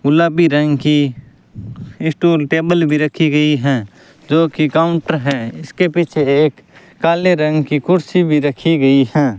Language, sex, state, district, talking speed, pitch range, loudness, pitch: Hindi, male, Rajasthan, Bikaner, 155 wpm, 145-165 Hz, -14 LUFS, 155 Hz